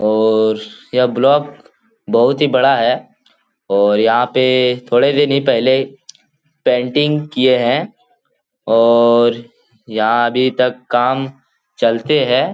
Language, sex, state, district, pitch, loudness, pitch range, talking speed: Hindi, male, Bihar, Jahanabad, 125 Hz, -14 LUFS, 120-145 Hz, 115 wpm